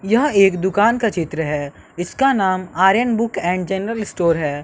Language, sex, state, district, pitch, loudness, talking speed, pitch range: Hindi, male, Bihar, West Champaran, 190 Hz, -18 LUFS, 180 wpm, 175-225 Hz